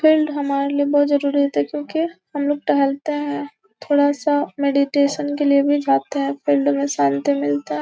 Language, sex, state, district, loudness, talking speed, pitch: Hindi, female, Bihar, Gopalganj, -19 LUFS, 185 wpm, 285 Hz